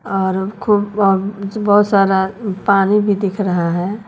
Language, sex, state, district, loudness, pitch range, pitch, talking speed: Hindi, female, Uttar Pradesh, Lucknow, -16 LUFS, 190-205 Hz, 200 Hz, 145 wpm